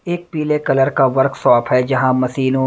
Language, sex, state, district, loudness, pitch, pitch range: Hindi, male, Delhi, New Delhi, -16 LUFS, 135 Hz, 130-150 Hz